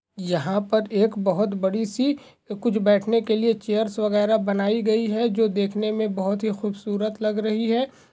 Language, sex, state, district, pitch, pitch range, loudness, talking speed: Hindi, male, Goa, North and South Goa, 215 Hz, 205-220 Hz, -23 LUFS, 175 wpm